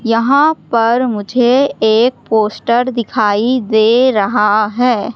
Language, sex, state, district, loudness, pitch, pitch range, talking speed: Hindi, female, Madhya Pradesh, Katni, -13 LUFS, 235 Hz, 220-250 Hz, 105 wpm